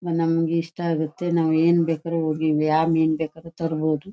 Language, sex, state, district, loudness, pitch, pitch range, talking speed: Kannada, female, Karnataka, Shimoga, -22 LUFS, 165 Hz, 160-165 Hz, 145 wpm